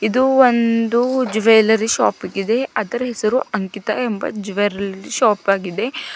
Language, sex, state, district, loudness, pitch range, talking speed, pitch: Kannada, female, Karnataka, Bidar, -18 LUFS, 205-245 Hz, 115 wpm, 220 Hz